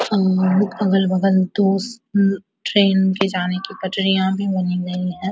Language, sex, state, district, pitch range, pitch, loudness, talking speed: Hindi, female, Bihar, Vaishali, 185-195 Hz, 195 Hz, -19 LUFS, 135 wpm